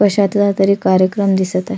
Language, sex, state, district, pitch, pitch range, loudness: Marathi, female, Maharashtra, Solapur, 195 Hz, 185-200 Hz, -14 LUFS